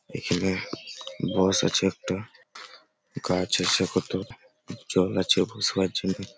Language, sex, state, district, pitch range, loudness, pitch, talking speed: Bengali, male, West Bengal, Malda, 90-95 Hz, -26 LUFS, 95 Hz, 105 wpm